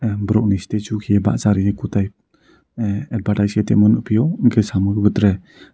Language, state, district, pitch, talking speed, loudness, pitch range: Kokborok, Tripura, Dhalai, 105 Hz, 135 wpm, -18 LUFS, 100-110 Hz